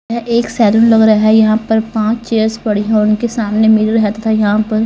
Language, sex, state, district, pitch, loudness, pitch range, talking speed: Hindi, female, Haryana, Rohtak, 220 Hz, -12 LUFS, 215-225 Hz, 235 wpm